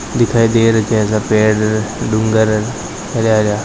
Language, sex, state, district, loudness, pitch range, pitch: Hindi, male, Rajasthan, Nagaur, -14 LUFS, 110-115 Hz, 110 Hz